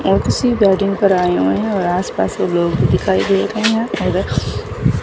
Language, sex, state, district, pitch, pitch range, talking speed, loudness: Hindi, female, Chandigarh, Chandigarh, 185 Hz, 170-205 Hz, 180 wpm, -16 LUFS